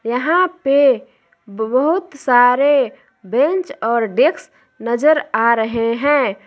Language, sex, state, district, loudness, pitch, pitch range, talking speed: Hindi, female, Jharkhand, Palamu, -16 LUFS, 250 Hz, 230-285 Hz, 100 wpm